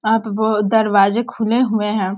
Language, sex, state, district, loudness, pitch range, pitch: Hindi, female, Bihar, Sitamarhi, -16 LUFS, 210-225 Hz, 215 Hz